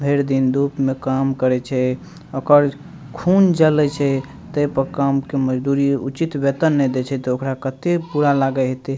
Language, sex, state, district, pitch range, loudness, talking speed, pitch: Maithili, male, Bihar, Madhepura, 135-145 Hz, -19 LUFS, 175 wpm, 140 Hz